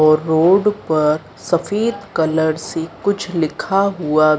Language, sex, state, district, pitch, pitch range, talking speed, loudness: Hindi, female, Madhya Pradesh, Dhar, 160 Hz, 155-195 Hz, 125 wpm, -17 LUFS